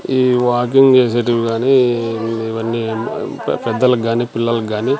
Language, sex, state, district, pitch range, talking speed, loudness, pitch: Telugu, male, Andhra Pradesh, Sri Satya Sai, 115-125 Hz, 110 wpm, -16 LUFS, 115 Hz